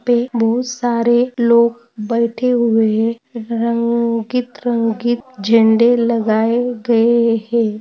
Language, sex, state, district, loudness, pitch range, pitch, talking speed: Hindi, female, Maharashtra, Nagpur, -16 LUFS, 230-240 Hz, 235 Hz, 100 wpm